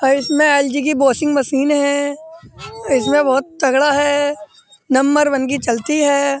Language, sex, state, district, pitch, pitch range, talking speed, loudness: Hindi, male, Uttar Pradesh, Muzaffarnagar, 285 Hz, 275-295 Hz, 150 wpm, -15 LUFS